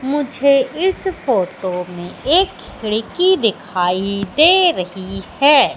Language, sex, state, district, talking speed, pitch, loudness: Hindi, female, Madhya Pradesh, Katni, 105 wpm, 265 Hz, -16 LUFS